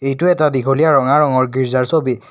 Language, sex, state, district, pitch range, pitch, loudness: Assamese, male, Assam, Kamrup Metropolitan, 130-150 Hz, 135 Hz, -15 LUFS